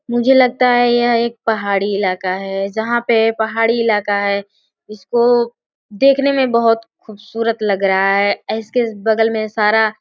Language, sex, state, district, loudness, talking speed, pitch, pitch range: Hindi, female, Uttar Pradesh, Gorakhpur, -16 LUFS, 160 wpm, 225 Hz, 205-235 Hz